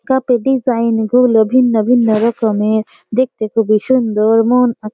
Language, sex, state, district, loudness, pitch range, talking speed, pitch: Bengali, female, West Bengal, Malda, -13 LUFS, 220-250 Hz, 160 wpm, 230 Hz